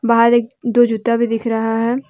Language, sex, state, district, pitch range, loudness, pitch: Hindi, female, Jharkhand, Deoghar, 225-240 Hz, -16 LUFS, 235 Hz